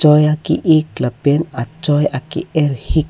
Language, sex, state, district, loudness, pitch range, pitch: Karbi, male, Assam, Karbi Anglong, -16 LUFS, 140-155 Hz, 150 Hz